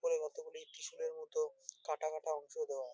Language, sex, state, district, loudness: Bengali, male, West Bengal, North 24 Parganas, -42 LUFS